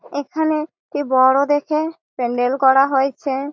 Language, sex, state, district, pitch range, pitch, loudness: Bengali, female, West Bengal, Malda, 265-305 Hz, 280 Hz, -18 LUFS